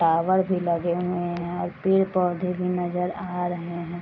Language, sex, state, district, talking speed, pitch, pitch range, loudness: Hindi, female, Bihar, East Champaran, 210 wpm, 180 Hz, 175-180 Hz, -25 LUFS